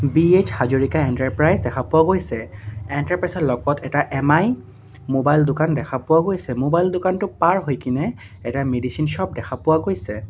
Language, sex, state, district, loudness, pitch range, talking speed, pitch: Assamese, male, Assam, Sonitpur, -20 LUFS, 125-160 Hz, 150 wpm, 140 Hz